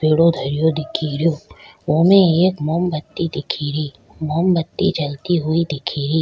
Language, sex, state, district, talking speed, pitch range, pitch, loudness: Rajasthani, female, Rajasthan, Nagaur, 165 wpm, 150-170 Hz, 160 Hz, -18 LUFS